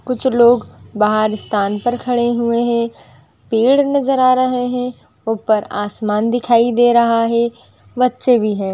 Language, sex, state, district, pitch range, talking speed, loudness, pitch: Hindi, female, Andhra Pradesh, Anantapur, 220-250 Hz, 165 wpm, -16 LUFS, 235 Hz